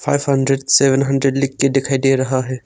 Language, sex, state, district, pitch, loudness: Hindi, male, Arunachal Pradesh, Longding, 135 Hz, -16 LUFS